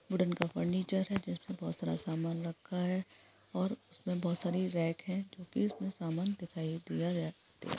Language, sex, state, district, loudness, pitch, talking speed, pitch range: Hindi, female, Bihar, East Champaran, -36 LUFS, 175 Hz, 160 wpm, 165-190 Hz